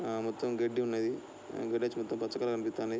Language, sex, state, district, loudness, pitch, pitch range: Telugu, male, Andhra Pradesh, Srikakulam, -35 LUFS, 115 Hz, 115-120 Hz